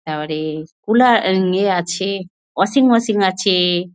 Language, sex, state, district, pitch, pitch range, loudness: Bengali, female, West Bengal, North 24 Parganas, 190 Hz, 175-200 Hz, -16 LUFS